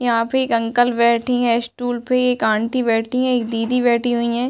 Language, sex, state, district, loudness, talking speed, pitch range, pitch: Hindi, female, Uttar Pradesh, Hamirpur, -18 LUFS, 225 wpm, 230-250 Hz, 240 Hz